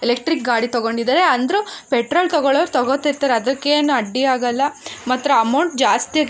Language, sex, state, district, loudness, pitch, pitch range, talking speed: Kannada, female, Karnataka, Dharwad, -18 LUFS, 270 Hz, 245-295 Hz, 135 wpm